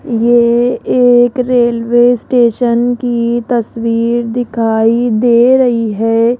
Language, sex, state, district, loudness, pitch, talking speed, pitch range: Hindi, female, Rajasthan, Jaipur, -11 LUFS, 240 Hz, 95 wpm, 230-245 Hz